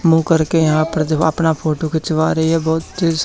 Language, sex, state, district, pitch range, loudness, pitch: Hindi, male, Haryana, Charkhi Dadri, 155-165 Hz, -16 LUFS, 160 Hz